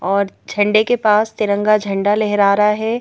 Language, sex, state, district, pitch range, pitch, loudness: Hindi, female, Madhya Pradesh, Bhopal, 200-215 Hz, 210 Hz, -16 LUFS